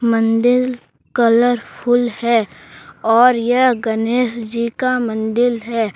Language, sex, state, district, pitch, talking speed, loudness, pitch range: Hindi, male, Jharkhand, Deoghar, 235 Hz, 100 wpm, -16 LUFS, 230-245 Hz